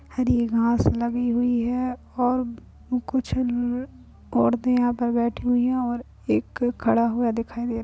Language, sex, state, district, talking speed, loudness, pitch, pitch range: Hindi, female, Uttar Pradesh, Gorakhpur, 170 wpm, -24 LUFS, 240 Hz, 235-245 Hz